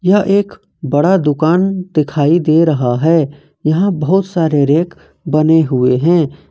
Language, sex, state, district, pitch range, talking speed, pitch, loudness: Hindi, male, Jharkhand, Ranchi, 150-180 Hz, 140 wpm, 160 Hz, -13 LUFS